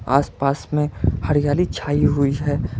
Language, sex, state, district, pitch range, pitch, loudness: Hindi, male, Karnataka, Bangalore, 140-145 Hz, 145 Hz, -20 LUFS